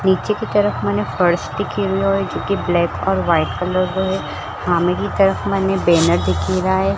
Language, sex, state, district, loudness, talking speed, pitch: Marwari, female, Rajasthan, Churu, -18 LUFS, 190 wpm, 180 Hz